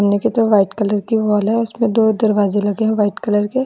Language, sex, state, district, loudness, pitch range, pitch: Hindi, female, Assam, Sonitpur, -16 LUFS, 205-225 Hz, 215 Hz